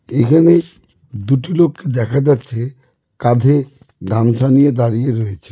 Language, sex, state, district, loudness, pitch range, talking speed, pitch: Bengali, male, West Bengal, Cooch Behar, -14 LUFS, 120-145 Hz, 110 wpm, 130 Hz